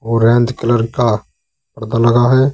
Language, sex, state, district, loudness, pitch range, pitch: Hindi, male, Uttar Pradesh, Saharanpur, -14 LUFS, 110-120 Hz, 115 Hz